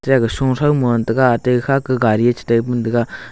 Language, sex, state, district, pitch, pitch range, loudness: Wancho, male, Arunachal Pradesh, Longding, 120 Hz, 115-130 Hz, -16 LUFS